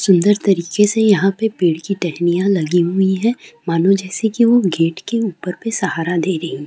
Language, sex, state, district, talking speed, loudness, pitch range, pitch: Hindi, female, Bihar, Saran, 200 wpm, -16 LUFS, 175-210 Hz, 190 Hz